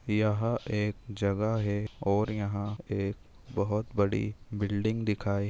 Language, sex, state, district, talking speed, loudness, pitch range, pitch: Hindi, male, Maharashtra, Dhule, 120 wpm, -31 LUFS, 100-105 Hz, 105 Hz